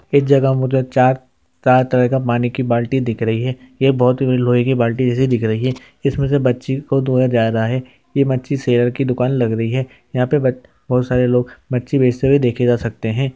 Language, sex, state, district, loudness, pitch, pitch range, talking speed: Hindi, male, Uttar Pradesh, Hamirpur, -17 LUFS, 125 Hz, 120-130 Hz, 240 wpm